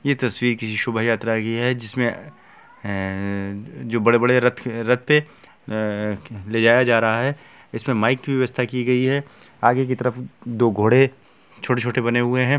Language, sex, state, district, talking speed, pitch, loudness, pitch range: Hindi, male, Bihar, Gopalganj, 155 wpm, 120 Hz, -21 LUFS, 115-125 Hz